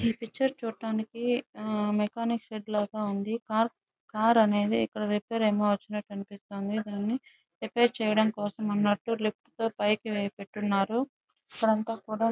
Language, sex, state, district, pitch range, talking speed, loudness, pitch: Telugu, female, Andhra Pradesh, Chittoor, 210-230 Hz, 125 wpm, -29 LUFS, 215 Hz